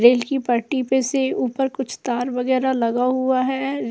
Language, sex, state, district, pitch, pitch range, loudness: Hindi, female, Uttar Pradesh, Jyotiba Phule Nagar, 260 Hz, 245-265 Hz, -21 LUFS